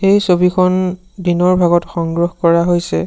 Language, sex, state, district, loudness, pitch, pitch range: Assamese, male, Assam, Sonitpur, -14 LUFS, 175 Hz, 170-185 Hz